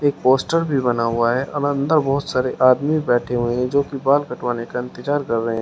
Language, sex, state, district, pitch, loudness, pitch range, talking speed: Hindi, male, Uttar Pradesh, Shamli, 130 Hz, -19 LUFS, 120-145 Hz, 245 wpm